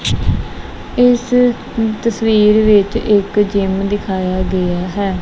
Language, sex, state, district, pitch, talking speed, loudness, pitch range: Punjabi, female, Punjab, Kapurthala, 200 Hz, 90 wpm, -15 LUFS, 185-220 Hz